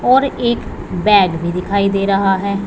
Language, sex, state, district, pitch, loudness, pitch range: Hindi, female, Punjab, Pathankot, 200 Hz, -15 LUFS, 190-215 Hz